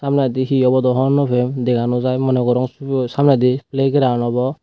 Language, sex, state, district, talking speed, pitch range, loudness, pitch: Chakma, female, Tripura, West Tripura, 205 wpm, 125-135 Hz, -17 LUFS, 130 Hz